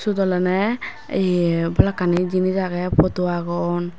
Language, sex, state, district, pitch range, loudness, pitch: Chakma, female, Tripura, West Tripura, 175-190 Hz, -20 LUFS, 180 Hz